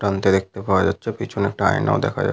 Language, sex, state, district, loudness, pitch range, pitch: Bengali, male, Jharkhand, Sahebganj, -20 LUFS, 95-100 Hz, 100 Hz